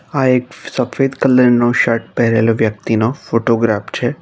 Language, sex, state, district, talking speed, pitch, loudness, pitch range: Gujarati, male, Gujarat, Navsari, 140 wpm, 120 Hz, -15 LUFS, 115-130 Hz